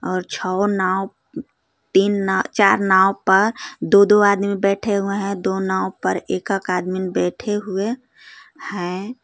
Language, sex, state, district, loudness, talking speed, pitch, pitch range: Hindi, female, Jharkhand, Garhwa, -19 LUFS, 150 wpm, 195 Hz, 190-205 Hz